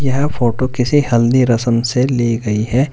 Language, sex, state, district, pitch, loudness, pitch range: Hindi, male, Uttar Pradesh, Saharanpur, 125 Hz, -15 LUFS, 115-130 Hz